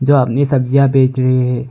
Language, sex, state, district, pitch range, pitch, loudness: Hindi, male, Arunachal Pradesh, Longding, 130-140 Hz, 130 Hz, -13 LUFS